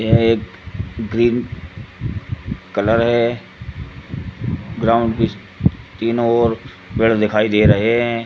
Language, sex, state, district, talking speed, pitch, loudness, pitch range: Hindi, male, Uttar Pradesh, Ghazipur, 100 wpm, 115 Hz, -18 LUFS, 105-115 Hz